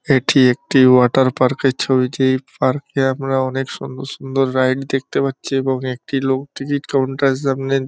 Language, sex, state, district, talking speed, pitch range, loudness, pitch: Bengali, male, West Bengal, North 24 Parganas, 165 wpm, 130-135 Hz, -17 LUFS, 135 Hz